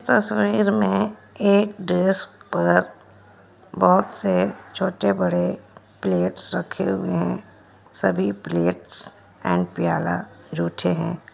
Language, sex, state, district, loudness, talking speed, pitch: Hindi, female, Bihar, Kishanganj, -22 LUFS, 105 wpm, 95 Hz